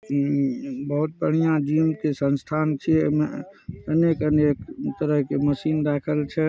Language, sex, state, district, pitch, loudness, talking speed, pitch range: Hindi, male, Bihar, Saharsa, 150 Hz, -23 LUFS, 130 wpm, 145-155 Hz